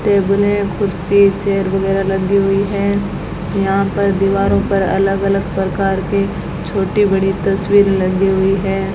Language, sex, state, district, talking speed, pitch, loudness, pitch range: Hindi, female, Rajasthan, Bikaner, 140 wpm, 195 Hz, -15 LUFS, 195-200 Hz